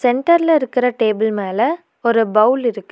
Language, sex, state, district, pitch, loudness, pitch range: Tamil, female, Tamil Nadu, Nilgiris, 245 Hz, -16 LUFS, 220-270 Hz